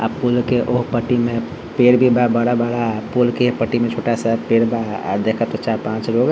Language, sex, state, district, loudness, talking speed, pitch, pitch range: Bhojpuri, male, Bihar, Saran, -18 LUFS, 245 wpm, 120 Hz, 115-120 Hz